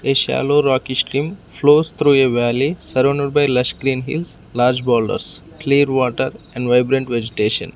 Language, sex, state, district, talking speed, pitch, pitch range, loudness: English, male, Arunachal Pradesh, Lower Dibang Valley, 155 wpm, 135 Hz, 125-145 Hz, -17 LUFS